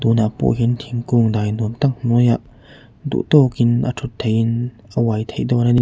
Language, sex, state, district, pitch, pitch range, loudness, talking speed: Mizo, male, Mizoram, Aizawl, 120 Hz, 110-125 Hz, -18 LUFS, 195 wpm